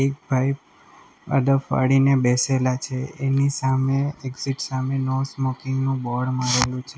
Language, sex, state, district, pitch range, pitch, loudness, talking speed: Gujarati, male, Gujarat, Valsad, 130-135 Hz, 130 Hz, -22 LUFS, 130 wpm